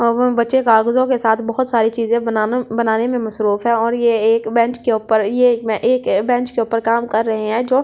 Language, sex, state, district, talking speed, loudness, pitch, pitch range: Hindi, female, Delhi, New Delhi, 255 wpm, -16 LUFS, 230 Hz, 220-245 Hz